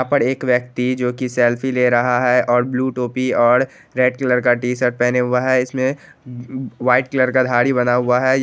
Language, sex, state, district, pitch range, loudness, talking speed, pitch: Hindi, male, Bihar, Jahanabad, 125-130 Hz, -17 LUFS, 205 wpm, 125 Hz